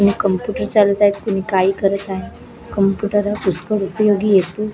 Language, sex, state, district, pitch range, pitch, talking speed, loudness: Marathi, female, Maharashtra, Gondia, 195-210 Hz, 200 Hz, 165 wpm, -17 LUFS